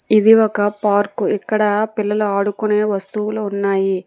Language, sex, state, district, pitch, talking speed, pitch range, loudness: Telugu, female, Telangana, Hyderabad, 210 Hz, 120 wpm, 200-215 Hz, -17 LUFS